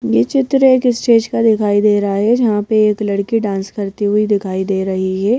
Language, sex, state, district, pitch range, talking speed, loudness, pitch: Hindi, female, Madhya Pradesh, Bhopal, 195-230 Hz, 220 wpm, -15 LUFS, 210 Hz